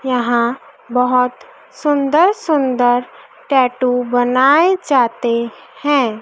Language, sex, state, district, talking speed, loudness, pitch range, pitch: Hindi, female, Madhya Pradesh, Dhar, 75 wpm, -15 LUFS, 245-285 Hz, 250 Hz